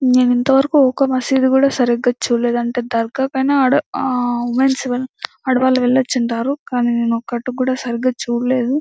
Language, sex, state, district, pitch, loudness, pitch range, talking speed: Telugu, female, Andhra Pradesh, Anantapur, 255 Hz, -17 LUFS, 240-265 Hz, 150 wpm